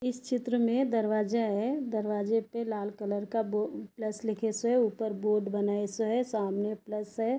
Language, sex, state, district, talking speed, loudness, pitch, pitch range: Hindi, female, Uttar Pradesh, Etah, 180 wpm, -31 LUFS, 220 Hz, 210-235 Hz